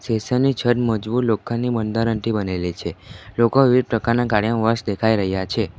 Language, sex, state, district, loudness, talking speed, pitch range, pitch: Gujarati, male, Gujarat, Valsad, -20 LUFS, 145 wpm, 105-120 Hz, 115 Hz